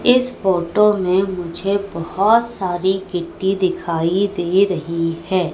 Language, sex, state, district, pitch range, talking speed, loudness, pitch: Hindi, female, Madhya Pradesh, Katni, 175-200 Hz, 120 wpm, -18 LUFS, 185 Hz